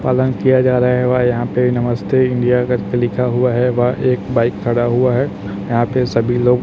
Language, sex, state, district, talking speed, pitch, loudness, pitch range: Hindi, male, Chhattisgarh, Raipur, 215 wpm, 125 Hz, -16 LUFS, 120-125 Hz